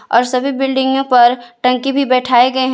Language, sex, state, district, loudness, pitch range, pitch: Hindi, female, Jharkhand, Ranchi, -13 LUFS, 245-265 Hz, 255 Hz